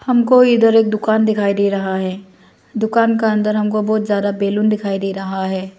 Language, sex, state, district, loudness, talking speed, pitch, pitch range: Hindi, female, Arunachal Pradesh, Lower Dibang Valley, -16 LUFS, 195 wpm, 210 Hz, 195-220 Hz